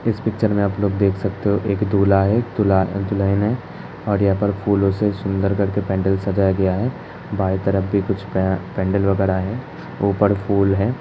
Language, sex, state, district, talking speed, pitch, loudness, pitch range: Hindi, male, Uttar Pradesh, Hamirpur, 195 wpm, 100 Hz, -19 LUFS, 95-105 Hz